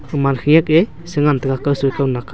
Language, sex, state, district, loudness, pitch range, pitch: Wancho, male, Arunachal Pradesh, Longding, -16 LUFS, 135-155 Hz, 140 Hz